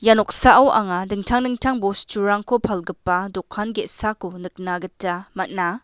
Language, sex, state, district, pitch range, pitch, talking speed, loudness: Garo, female, Meghalaya, West Garo Hills, 180-215 Hz, 200 Hz, 125 wpm, -20 LUFS